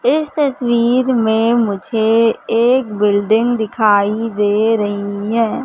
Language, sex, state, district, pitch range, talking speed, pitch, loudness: Hindi, female, Madhya Pradesh, Katni, 210-240 Hz, 105 wpm, 225 Hz, -15 LUFS